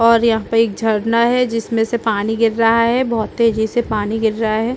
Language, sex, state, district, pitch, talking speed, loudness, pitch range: Hindi, female, Chhattisgarh, Bastar, 225 Hz, 240 wpm, -16 LUFS, 220-230 Hz